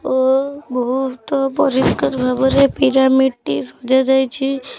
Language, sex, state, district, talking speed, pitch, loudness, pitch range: Odia, female, Odisha, Khordha, 100 wpm, 265 Hz, -16 LUFS, 260-270 Hz